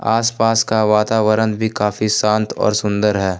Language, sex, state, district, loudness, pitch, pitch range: Hindi, male, Jharkhand, Ranchi, -16 LUFS, 110 Hz, 105-110 Hz